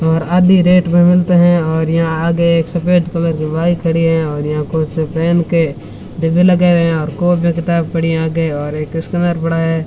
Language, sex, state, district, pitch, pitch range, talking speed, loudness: Hindi, male, Rajasthan, Bikaner, 165 Hz, 160-175 Hz, 215 wpm, -14 LUFS